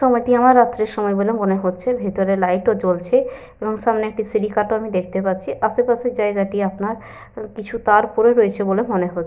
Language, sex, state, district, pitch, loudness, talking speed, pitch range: Bengali, female, Jharkhand, Sahebganj, 215 Hz, -18 LUFS, 195 wpm, 195-230 Hz